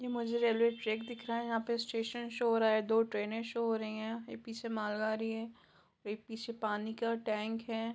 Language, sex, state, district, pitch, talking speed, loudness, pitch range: Hindi, female, Jharkhand, Jamtara, 225 Hz, 220 wpm, -36 LUFS, 220-235 Hz